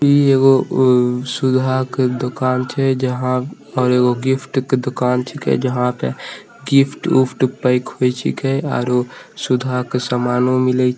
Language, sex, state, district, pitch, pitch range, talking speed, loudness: Maithili, male, Bihar, Begusarai, 130 Hz, 125-130 Hz, 145 wpm, -17 LUFS